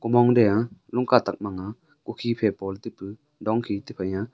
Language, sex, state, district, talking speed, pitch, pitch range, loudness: Wancho, male, Arunachal Pradesh, Longding, 235 wpm, 110 Hz, 100-120 Hz, -24 LUFS